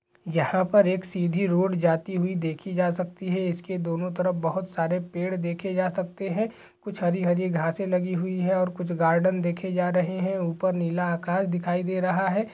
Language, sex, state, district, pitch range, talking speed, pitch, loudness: Hindi, male, Chhattisgarh, Balrampur, 175-185 Hz, 190 wpm, 180 Hz, -26 LUFS